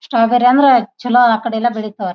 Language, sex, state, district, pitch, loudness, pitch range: Kannada, female, Karnataka, Bijapur, 235 Hz, -13 LUFS, 220-245 Hz